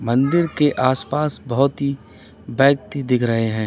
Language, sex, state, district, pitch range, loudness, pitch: Hindi, male, Uttar Pradesh, Lalitpur, 115-140 Hz, -19 LUFS, 135 Hz